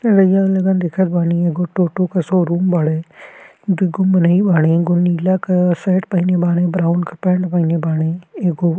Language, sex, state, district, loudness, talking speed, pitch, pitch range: Bhojpuri, male, Uttar Pradesh, Gorakhpur, -16 LUFS, 130 wpm, 180 Hz, 170-185 Hz